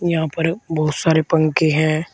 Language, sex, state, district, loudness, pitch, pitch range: Hindi, male, Uttar Pradesh, Shamli, -18 LUFS, 160 Hz, 155-165 Hz